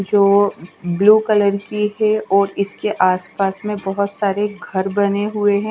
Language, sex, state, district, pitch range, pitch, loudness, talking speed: Hindi, female, Punjab, Kapurthala, 195-210 Hz, 200 Hz, -17 LUFS, 170 wpm